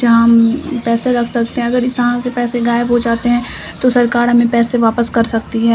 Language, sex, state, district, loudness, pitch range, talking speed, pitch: Hindi, female, Bihar, Samastipur, -14 LUFS, 230-245 Hz, 240 wpm, 240 Hz